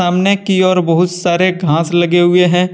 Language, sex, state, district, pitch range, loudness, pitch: Hindi, male, Jharkhand, Deoghar, 175-185 Hz, -12 LUFS, 180 Hz